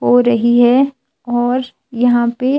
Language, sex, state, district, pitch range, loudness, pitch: Hindi, female, Himachal Pradesh, Shimla, 240-255 Hz, -14 LUFS, 245 Hz